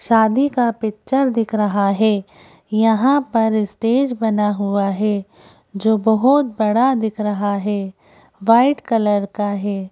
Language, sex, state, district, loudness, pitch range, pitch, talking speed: Hindi, female, Madhya Pradesh, Bhopal, -18 LUFS, 205-230 Hz, 220 Hz, 135 wpm